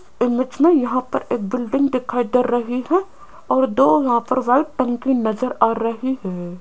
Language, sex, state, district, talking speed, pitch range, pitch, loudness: Hindi, female, Rajasthan, Jaipur, 180 wpm, 240-265 Hz, 255 Hz, -19 LUFS